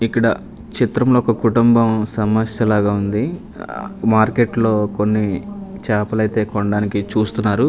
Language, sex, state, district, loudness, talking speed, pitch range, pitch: Telugu, male, Andhra Pradesh, Manyam, -17 LUFS, 110 wpm, 105-115 Hz, 110 Hz